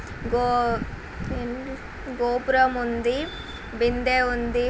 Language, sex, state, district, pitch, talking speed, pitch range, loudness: Telugu, female, Telangana, Nalgonda, 245 Hz, 65 wpm, 240-255 Hz, -24 LUFS